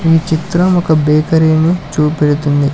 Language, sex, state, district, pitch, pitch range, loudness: Telugu, male, Telangana, Hyderabad, 160 Hz, 150-165 Hz, -12 LUFS